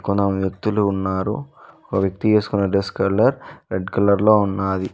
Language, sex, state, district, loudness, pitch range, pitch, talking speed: Telugu, male, Telangana, Mahabubabad, -20 LUFS, 95-105 Hz, 100 Hz, 145 wpm